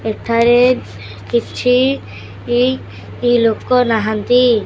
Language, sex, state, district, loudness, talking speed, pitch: Odia, male, Odisha, Khordha, -15 LUFS, 50 wpm, 225 Hz